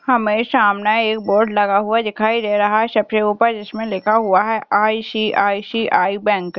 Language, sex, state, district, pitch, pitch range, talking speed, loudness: Hindi, female, Bihar, Jahanabad, 215 Hz, 205-225 Hz, 175 wpm, -17 LUFS